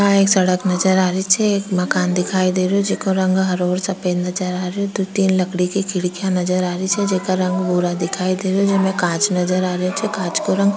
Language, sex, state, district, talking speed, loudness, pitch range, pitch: Rajasthani, female, Rajasthan, Churu, 260 wpm, -18 LUFS, 180-195 Hz, 185 Hz